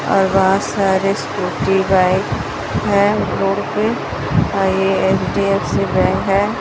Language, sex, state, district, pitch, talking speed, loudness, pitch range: Hindi, female, Odisha, Sambalpur, 195 Hz, 120 wpm, -16 LUFS, 190-195 Hz